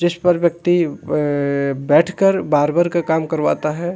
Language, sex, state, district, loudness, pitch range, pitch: Hindi, male, Uttarakhand, Uttarkashi, -17 LUFS, 150-175 Hz, 170 Hz